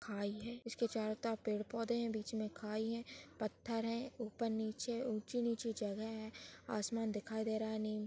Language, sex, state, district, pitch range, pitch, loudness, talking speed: Hindi, male, Maharashtra, Dhule, 215-230 Hz, 220 Hz, -41 LUFS, 170 wpm